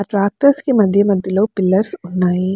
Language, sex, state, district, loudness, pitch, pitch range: Telugu, female, Andhra Pradesh, Chittoor, -15 LUFS, 200 Hz, 185-210 Hz